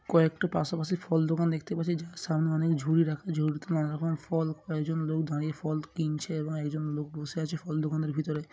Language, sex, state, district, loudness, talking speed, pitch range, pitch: Bengali, male, West Bengal, Malda, -31 LUFS, 205 wpm, 155-165 Hz, 160 Hz